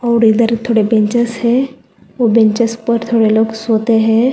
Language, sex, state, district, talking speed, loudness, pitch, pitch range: Hindi, female, Telangana, Hyderabad, 165 wpm, -13 LUFS, 230 Hz, 225-235 Hz